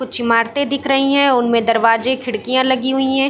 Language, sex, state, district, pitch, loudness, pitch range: Hindi, female, Chhattisgarh, Bilaspur, 260 Hz, -15 LUFS, 235-270 Hz